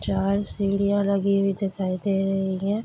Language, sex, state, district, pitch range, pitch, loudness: Hindi, female, Bihar, Darbhanga, 195-200 Hz, 195 Hz, -24 LUFS